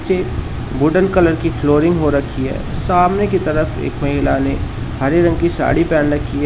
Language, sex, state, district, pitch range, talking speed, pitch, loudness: Hindi, male, Uttar Pradesh, Shamli, 130-170 Hz, 195 wpm, 150 Hz, -16 LUFS